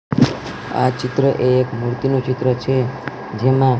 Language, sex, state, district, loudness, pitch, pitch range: Gujarati, male, Gujarat, Gandhinagar, -18 LUFS, 130 Hz, 125-135 Hz